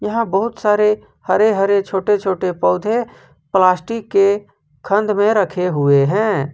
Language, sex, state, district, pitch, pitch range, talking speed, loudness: Hindi, male, Jharkhand, Ranchi, 200 Hz, 180-210 Hz, 135 wpm, -16 LUFS